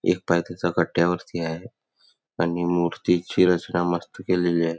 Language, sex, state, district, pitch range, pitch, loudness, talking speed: Marathi, male, Karnataka, Belgaum, 85-90 Hz, 85 Hz, -23 LUFS, 150 wpm